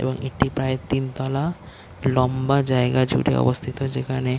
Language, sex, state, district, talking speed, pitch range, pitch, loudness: Bengali, male, West Bengal, Dakshin Dinajpur, 135 wpm, 130-135 Hz, 130 Hz, -22 LUFS